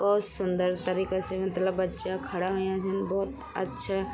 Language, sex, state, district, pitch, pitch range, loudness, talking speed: Garhwali, female, Uttarakhand, Tehri Garhwal, 190 Hz, 185-195 Hz, -30 LUFS, 175 wpm